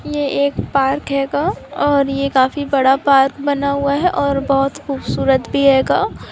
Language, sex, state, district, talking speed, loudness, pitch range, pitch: Hindi, female, Maharashtra, Chandrapur, 180 wpm, -16 LUFS, 275-285 Hz, 275 Hz